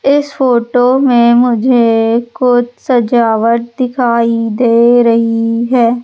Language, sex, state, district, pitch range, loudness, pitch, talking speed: Hindi, female, Madhya Pradesh, Umaria, 230-250 Hz, -11 LUFS, 240 Hz, 100 wpm